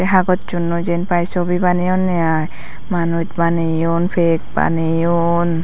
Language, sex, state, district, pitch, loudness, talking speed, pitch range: Chakma, female, Tripura, Dhalai, 170 Hz, -17 LUFS, 105 wpm, 165-180 Hz